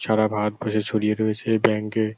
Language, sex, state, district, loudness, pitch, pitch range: Bengali, male, West Bengal, North 24 Parganas, -23 LUFS, 110 Hz, 105-110 Hz